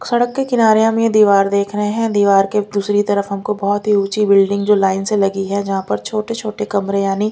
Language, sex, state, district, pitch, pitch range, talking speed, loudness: Hindi, female, Delhi, New Delhi, 205 Hz, 200-215 Hz, 230 wpm, -16 LUFS